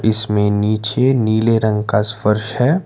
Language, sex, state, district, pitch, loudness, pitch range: Hindi, male, Karnataka, Bangalore, 110 Hz, -16 LUFS, 105-115 Hz